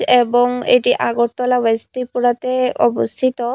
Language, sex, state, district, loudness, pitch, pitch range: Bengali, female, Tripura, West Tripura, -17 LUFS, 245 Hz, 235-255 Hz